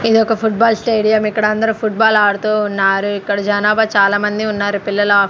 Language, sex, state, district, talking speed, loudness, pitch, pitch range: Telugu, female, Andhra Pradesh, Sri Satya Sai, 145 wpm, -14 LUFS, 210 Hz, 205-220 Hz